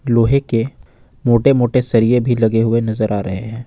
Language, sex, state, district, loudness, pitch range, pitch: Hindi, male, Jharkhand, Ranchi, -16 LUFS, 110-125 Hz, 115 Hz